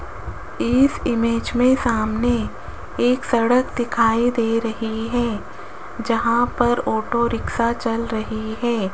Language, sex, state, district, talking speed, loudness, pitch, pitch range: Hindi, female, Rajasthan, Jaipur, 115 wpm, -20 LUFS, 235 Hz, 225-240 Hz